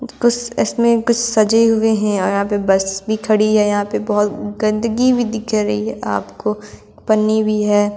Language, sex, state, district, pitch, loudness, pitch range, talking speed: Hindi, female, Delhi, New Delhi, 215 Hz, -16 LUFS, 200-225 Hz, 190 wpm